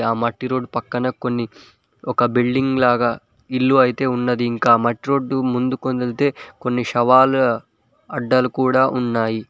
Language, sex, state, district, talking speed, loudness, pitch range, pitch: Telugu, male, Telangana, Mahabubabad, 125 wpm, -19 LUFS, 120-130 Hz, 125 Hz